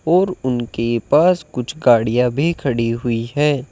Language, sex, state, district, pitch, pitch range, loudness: Hindi, male, Uttar Pradesh, Saharanpur, 125 Hz, 120-150 Hz, -18 LUFS